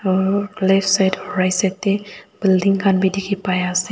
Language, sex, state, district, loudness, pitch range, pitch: Nagamese, female, Nagaland, Dimapur, -18 LUFS, 185-200 Hz, 195 Hz